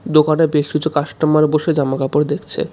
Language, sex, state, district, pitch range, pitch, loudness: Bengali, male, West Bengal, Darjeeling, 145-155 Hz, 155 Hz, -16 LUFS